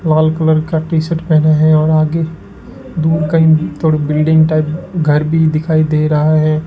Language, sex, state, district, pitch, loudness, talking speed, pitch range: Hindi, male, Rajasthan, Bikaner, 155 Hz, -13 LUFS, 180 wpm, 155-160 Hz